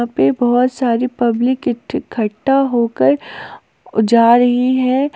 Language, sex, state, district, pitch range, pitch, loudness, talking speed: Hindi, female, Jharkhand, Palamu, 230-255 Hz, 240 Hz, -15 LUFS, 115 wpm